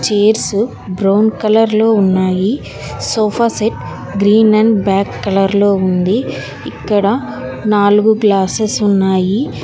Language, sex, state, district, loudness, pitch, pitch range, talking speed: Telugu, female, Telangana, Hyderabad, -13 LUFS, 205 Hz, 195-220 Hz, 105 wpm